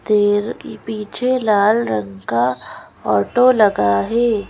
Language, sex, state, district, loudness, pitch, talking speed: Hindi, female, Madhya Pradesh, Bhopal, -17 LUFS, 210 Hz, 95 wpm